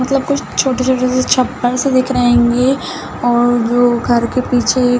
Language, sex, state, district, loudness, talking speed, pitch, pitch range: Hindi, female, Uttar Pradesh, Budaun, -14 LUFS, 180 wpm, 250 Hz, 240-255 Hz